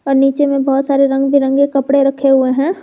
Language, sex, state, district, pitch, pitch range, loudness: Hindi, female, Jharkhand, Garhwa, 275 Hz, 270-280 Hz, -13 LUFS